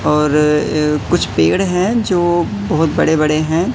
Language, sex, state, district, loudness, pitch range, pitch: Hindi, male, Madhya Pradesh, Katni, -15 LUFS, 150-175 Hz, 155 Hz